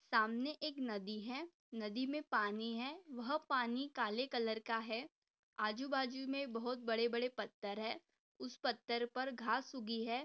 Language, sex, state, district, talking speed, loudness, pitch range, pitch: Hindi, female, Maharashtra, Pune, 150 wpm, -41 LUFS, 225-270 Hz, 240 Hz